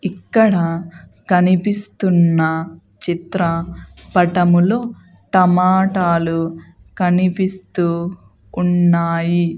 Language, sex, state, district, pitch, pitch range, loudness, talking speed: Telugu, female, Andhra Pradesh, Sri Satya Sai, 175 Hz, 170-185 Hz, -17 LUFS, 50 wpm